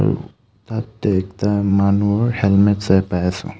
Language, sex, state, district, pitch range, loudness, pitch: Assamese, male, Assam, Kamrup Metropolitan, 95-105 Hz, -18 LUFS, 100 Hz